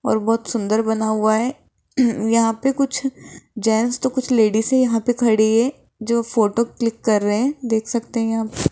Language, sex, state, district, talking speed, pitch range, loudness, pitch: Hindi, female, Rajasthan, Jaipur, 195 wpm, 220-245 Hz, -19 LUFS, 230 Hz